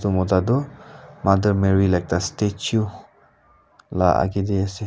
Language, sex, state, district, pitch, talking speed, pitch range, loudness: Nagamese, male, Nagaland, Kohima, 100 Hz, 125 wpm, 95-105 Hz, -21 LUFS